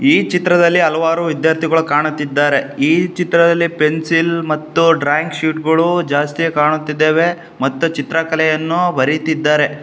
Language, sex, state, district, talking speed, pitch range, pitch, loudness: Kannada, male, Karnataka, Shimoga, 105 wpm, 150-170 Hz, 160 Hz, -15 LUFS